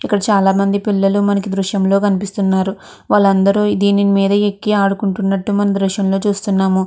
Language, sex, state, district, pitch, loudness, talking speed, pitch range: Telugu, female, Andhra Pradesh, Chittoor, 200 Hz, -15 LUFS, 150 wpm, 195-205 Hz